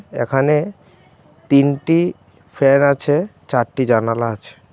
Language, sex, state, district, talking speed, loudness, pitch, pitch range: Bengali, male, Tripura, West Tripura, 90 wpm, -17 LUFS, 140 Hz, 130-150 Hz